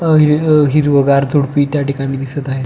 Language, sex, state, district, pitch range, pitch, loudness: Marathi, male, Maharashtra, Pune, 140-150 Hz, 145 Hz, -13 LUFS